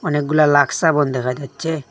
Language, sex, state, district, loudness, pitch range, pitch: Bengali, male, Assam, Hailakandi, -17 LUFS, 140-155 Hz, 145 Hz